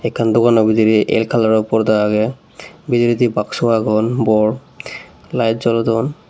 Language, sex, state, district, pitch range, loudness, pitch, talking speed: Chakma, male, Tripura, Unakoti, 110-120 Hz, -15 LUFS, 115 Hz, 125 wpm